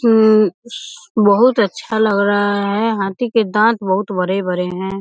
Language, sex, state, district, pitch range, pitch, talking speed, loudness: Hindi, female, Bihar, East Champaran, 190-225 Hz, 205 Hz, 145 wpm, -15 LUFS